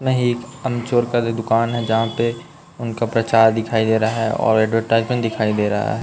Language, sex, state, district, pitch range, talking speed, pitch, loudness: Hindi, male, Chhattisgarh, Raipur, 110-120 Hz, 210 wpm, 115 Hz, -19 LUFS